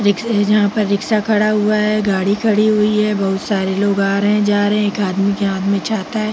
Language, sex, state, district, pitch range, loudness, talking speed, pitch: Hindi, female, Chhattisgarh, Bilaspur, 200-215 Hz, -16 LUFS, 235 wpm, 205 Hz